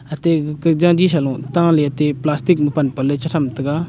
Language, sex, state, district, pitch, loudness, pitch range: Wancho, male, Arunachal Pradesh, Longding, 150 Hz, -17 LUFS, 145-165 Hz